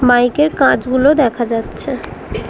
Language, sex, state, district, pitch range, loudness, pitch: Bengali, female, West Bengal, North 24 Parganas, 240-285 Hz, -14 LUFS, 250 Hz